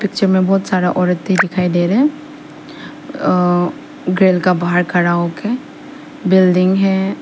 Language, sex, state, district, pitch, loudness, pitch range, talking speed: Hindi, female, Arunachal Pradesh, Papum Pare, 185 Hz, -15 LUFS, 180-195 Hz, 135 wpm